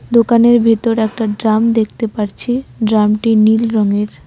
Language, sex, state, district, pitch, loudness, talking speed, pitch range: Bengali, female, West Bengal, Cooch Behar, 225 Hz, -14 LUFS, 125 wpm, 215-230 Hz